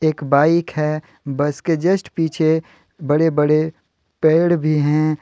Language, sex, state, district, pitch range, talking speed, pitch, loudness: Hindi, male, Jharkhand, Deoghar, 150-165 Hz, 140 wpm, 155 Hz, -18 LUFS